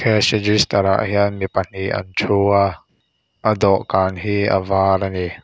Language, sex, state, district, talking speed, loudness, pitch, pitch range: Mizo, male, Mizoram, Aizawl, 165 wpm, -18 LUFS, 95 Hz, 95-100 Hz